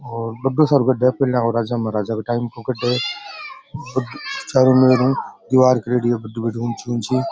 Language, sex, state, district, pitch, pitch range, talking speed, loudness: Rajasthani, male, Rajasthan, Nagaur, 125 Hz, 115-130 Hz, 130 wpm, -19 LUFS